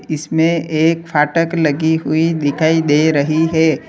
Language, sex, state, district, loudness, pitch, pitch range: Hindi, male, Uttar Pradesh, Lalitpur, -15 LUFS, 160 Hz, 150-165 Hz